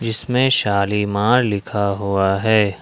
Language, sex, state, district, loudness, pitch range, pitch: Hindi, male, Jharkhand, Ranchi, -18 LUFS, 100-115 Hz, 105 Hz